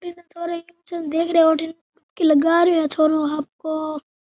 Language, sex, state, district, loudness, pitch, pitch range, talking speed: Rajasthani, male, Rajasthan, Nagaur, -20 LUFS, 325 Hz, 310-340 Hz, 170 wpm